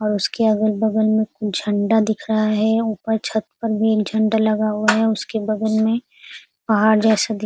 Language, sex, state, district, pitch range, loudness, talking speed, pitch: Hindi, female, Uttar Pradesh, Ghazipur, 215-220 Hz, -19 LUFS, 185 wpm, 220 Hz